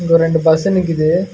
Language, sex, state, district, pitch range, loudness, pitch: Tamil, male, Karnataka, Bangalore, 160-180 Hz, -14 LUFS, 165 Hz